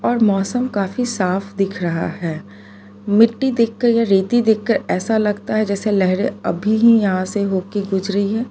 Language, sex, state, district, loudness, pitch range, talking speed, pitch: Hindi, female, Gujarat, Valsad, -18 LUFS, 190-225 Hz, 160 wpm, 200 Hz